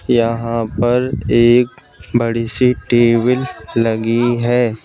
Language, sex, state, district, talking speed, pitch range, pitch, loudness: Hindi, male, Madhya Pradesh, Bhopal, 100 wpm, 115-125 Hz, 120 Hz, -15 LUFS